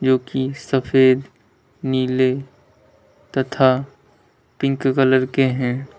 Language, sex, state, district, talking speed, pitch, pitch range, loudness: Hindi, male, Uttar Pradesh, Lalitpur, 90 wpm, 130 Hz, 125-135 Hz, -19 LUFS